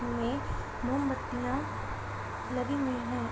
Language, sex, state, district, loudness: Hindi, female, Uttar Pradesh, Hamirpur, -34 LUFS